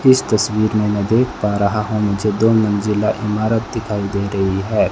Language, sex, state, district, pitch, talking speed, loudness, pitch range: Hindi, male, Rajasthan, Bikaner, 105 Hz, 195 wpm, -17 LUFS, 105-110 Hz